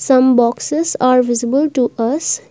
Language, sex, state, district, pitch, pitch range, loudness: English, female, Assam, Kamrup Metropolitan, 255 Hz, 240-275 Hz, -15 LUFS